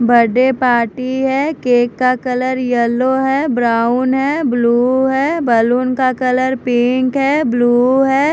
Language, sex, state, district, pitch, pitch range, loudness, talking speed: Hindi, female, Bihar, Patna, 255 Hz, 245-265 Hz, -14 LUFS, 135 wpm